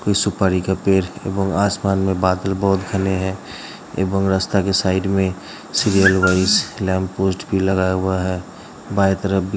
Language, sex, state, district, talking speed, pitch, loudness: Hindi, male, Uttar Pradesh, Hamirpur, 175 wpm, 95 Hz, -19 LUFS